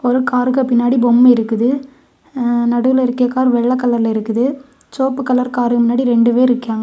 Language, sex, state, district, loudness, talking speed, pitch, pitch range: Tamil, female, Tamil Nadu, Kanyakumari, -14 LUFS, 160 wpm, 250 Hz, 240-255 Hz